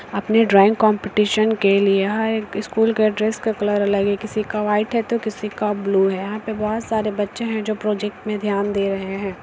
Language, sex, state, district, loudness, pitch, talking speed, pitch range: Hindi, female, Bihar, Sitamarhi, -20 LUFS, 210 Hz, 230 wpm, 200-220 Hz